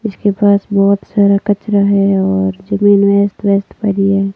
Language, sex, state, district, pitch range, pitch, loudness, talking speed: Hindi, female, Rajasthan, Barmer, 195-205 Hz, 200 Hz, -13 LUFS, 165 wpm